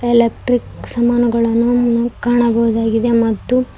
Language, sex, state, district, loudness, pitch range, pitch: Kannada, female, Karnataka, Koppal, -15 LUFS, 230-240 Hz, 235 Hz